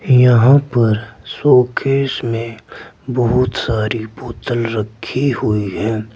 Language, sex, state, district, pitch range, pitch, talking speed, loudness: Hindi, male, Uttar Pradesh, Saharanpur, 110-125 Hz, 115 Hz, 95 wpm, -16 LUFS